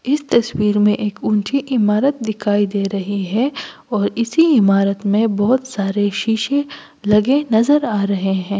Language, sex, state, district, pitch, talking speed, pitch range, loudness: Hindi, female, Delhi, New Delhi, 210 Hz, 155 wpm, 205-255 Hz, -17 LUFS